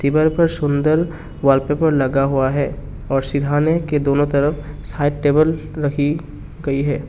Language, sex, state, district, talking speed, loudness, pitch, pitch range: Hindi, male, Assam, Kamrup Metropolitan, 145 wpm, -18 LUFS, 145 Hz, 140-155 Hz